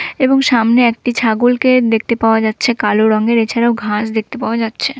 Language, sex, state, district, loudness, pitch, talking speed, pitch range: Bengali, female, West Bengal, Dakshin Dinajpur, -14 LUFS, 230 Hz, 170 wpm, 220-245 Hz